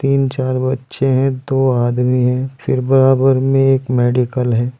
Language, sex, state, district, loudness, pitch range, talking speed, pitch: Hindi, male, Uttar Pradesh, Saharanpur, -15 LUFS, 125-135 Hz, 160 wpm, 130 Hz